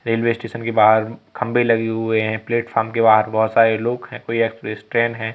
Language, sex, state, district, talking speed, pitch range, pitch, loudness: Hindi, male, Madhya Pradesh, Katni, 215 wpm, 110-115 Hz, 115 Hz, -18 LUFS